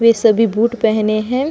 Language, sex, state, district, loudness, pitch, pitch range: Hindi, female, Chhattisgarh, Sukma, -15 LUFS, 225 Hz, 215-235 Hz